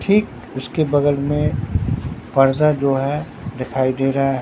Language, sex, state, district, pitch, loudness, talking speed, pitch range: Hindi, male, Bihar, Katihar, 135 Hz, -19 LUFS, 135 wpm, 130-145 Hz